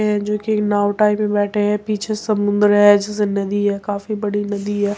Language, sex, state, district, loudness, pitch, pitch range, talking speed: Hindi, female, Uttar Pradesh, Muzaffarnagar, -18 LUFS, 205 Hz, 205-210 Hz, 215 wpm